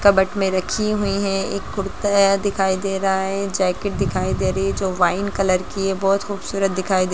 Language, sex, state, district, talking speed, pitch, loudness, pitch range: Hindi, female, Bihar, Gaya, 220 wpm, 195 Hz, -20 LUFS, 190-200 Hz